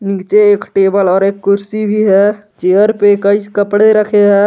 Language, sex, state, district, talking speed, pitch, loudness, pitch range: Hindi, male, Jharkhand, Garhwa, 190 wpm, 205 Hz, -11 LUFS, 200-210 Hz